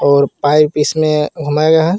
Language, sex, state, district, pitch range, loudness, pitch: Hindi, male, Jharkhand, Garhwa, 145-155 Hz, -13 LUFS, 150 Hz